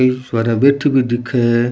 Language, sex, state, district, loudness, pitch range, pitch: Rajasthani, male, Rajasthan, Churu, -15 LUFS, 120-130 Hz, 125 Hz